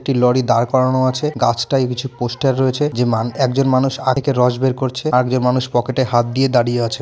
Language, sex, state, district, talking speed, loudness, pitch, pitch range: Bengali, male, West Bengal, North 24 Parganas, 205 wpm, -17 LUFS, 130 Hz, 120-130 Hz